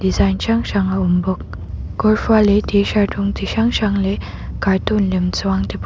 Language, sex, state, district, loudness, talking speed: Mizo, female, Mizoram, Aizawl, -17 LUFS, 215 wpm